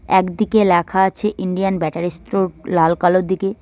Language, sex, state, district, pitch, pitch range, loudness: Bengali, female, West Bengal, Cooch Behar, 185 Hz, 175-195 Hz, -18 LUFS